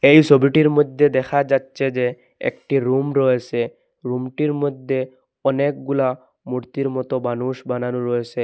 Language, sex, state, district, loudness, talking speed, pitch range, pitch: Bengali, male, Assam, Hailakandi, -20 LUFS, 130 wpm, 125-140 Hz, 130 Hz